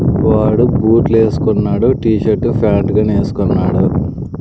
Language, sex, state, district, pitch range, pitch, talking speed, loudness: Telugu, male, Andhra Pradesh, Sri Satya Sai, 105-115 Hz, 110 Hz, 110 wpm, -13 LUFS